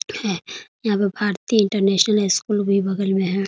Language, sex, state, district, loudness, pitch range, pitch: Hindi, female, Bihar, Muzaffarpur, -20 LUFS, 195-210 Hz, 200 Hz